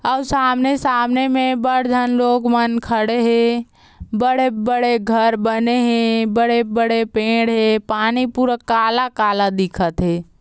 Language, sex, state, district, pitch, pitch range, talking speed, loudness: Chhattisgarhi, female, Chhattisgarh, Balrampur, 235 Hz, 225-250 Hz, 125 wpm, -17 LUFS